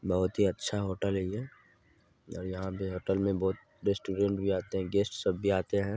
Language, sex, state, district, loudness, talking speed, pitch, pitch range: Maithili, male, Bihar, Supaul, -32 LUFS, 160 wpm, 100 Hz, 95-100 Hz